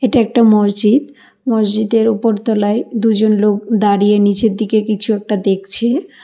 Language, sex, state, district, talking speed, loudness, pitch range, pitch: Bengali, female, Karnataka, Bangalore, 135 wpm, -14 LUFS, 210-230 Hz, 220 Hz